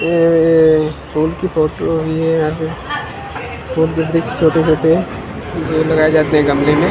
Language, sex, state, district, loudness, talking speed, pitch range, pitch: Hindi, male, Maharashtra, Mumbai Suburban, -15 LUFS, 155 wpm, 155-165 Hz, 160 Hz